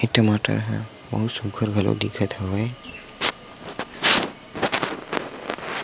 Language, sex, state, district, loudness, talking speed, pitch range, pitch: Chhattisgarhi, male, Chhattisgarh, Sukma, -23 LUFS, 80 wpm, 105-115 Hz, 110 Hz